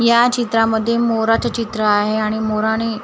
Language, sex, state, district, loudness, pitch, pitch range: Marathi, female, Maharashtra, Gondia, -17 LUFS, 225 Hz, 215-230 Hz